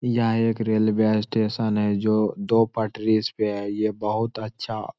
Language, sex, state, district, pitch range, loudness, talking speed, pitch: Hindi, male, Bihar, Jamui, 105-115 Hz, -23 LUFS, 170 wpm, 110 Hz